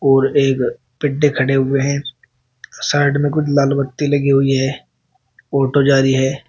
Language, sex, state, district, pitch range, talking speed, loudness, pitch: Hindi, male, Uttar Pradesh, Shamli, 135-140 Hz, 165 wpm, -16 LUFS, 140 Hz